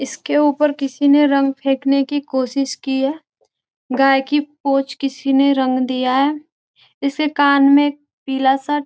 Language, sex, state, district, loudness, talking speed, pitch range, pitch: Hindi, female, Bihar, Gopalganj, -17 LUFS, 165 wpm, 270-290 Hz, 275 Hz